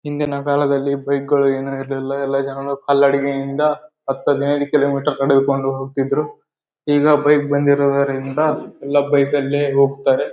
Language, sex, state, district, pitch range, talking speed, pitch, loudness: Kannada, male, Karnataka, Bellary, 140-145 Hz, 120 wpm, 140 Hz, -18 LUFS